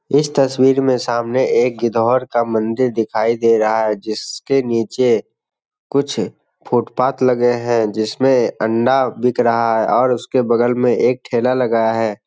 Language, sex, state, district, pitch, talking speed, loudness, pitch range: Hindi, male, Bihar, Jamui, 120 Hz, 155 wpm, -16 LUFS, 115-130 Hz